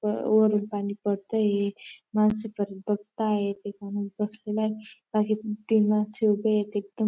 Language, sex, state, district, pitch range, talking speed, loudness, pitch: Marathi, female, Maharashtra, Dhule, 205-215 Hz, 145 wpm, -27 LUFS, 210 Hz